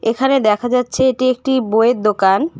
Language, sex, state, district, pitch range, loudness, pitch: Bengali, female, West Bengal, Cooch Behar, 210-260 Hz, -15 LUFS, 245 Hz